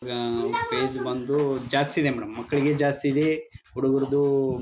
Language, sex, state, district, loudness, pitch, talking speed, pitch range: Kannada, male, Karnataka, Bellary, -25 LUFS, 140 Hz, 145 wpm, 130-145 Hz